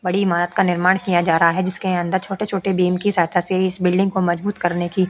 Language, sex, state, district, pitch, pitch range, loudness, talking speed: Hindi, female, Uttar Pradesh, Etah, 185 Hz, 175-190 Hz, -19 LUFS, 260 wpm